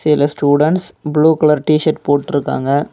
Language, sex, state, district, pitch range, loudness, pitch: Tamil, male, Tamil Nadu, Namakkal, 145-155 Hz, -14 LUFS, 150 Hz